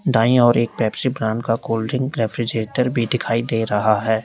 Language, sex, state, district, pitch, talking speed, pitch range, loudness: Hindi, male, Uttar Pradesh, Lalitpur, 115 Hz, 200 wpm, 110-125 Hz, -19 LUFS